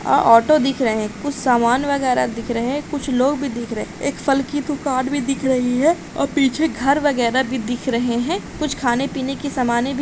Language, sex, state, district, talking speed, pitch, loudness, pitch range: Hindi, female, Bihar, Jahanabad, 235 wpm, 265 Hz, -19 LUFS, 245-285 Hz